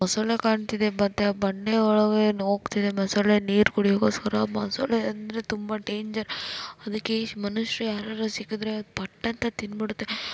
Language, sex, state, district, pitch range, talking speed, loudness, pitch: Kannada, female, Karnataka, Belgaum, 205-220 Hz, 130 wpm, -26 LUFS, 215 Hz